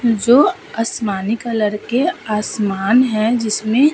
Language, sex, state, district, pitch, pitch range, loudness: Hindi, female, Bihar, Vaishali, 225 Hz, 210-245 Hz, -17 LUFS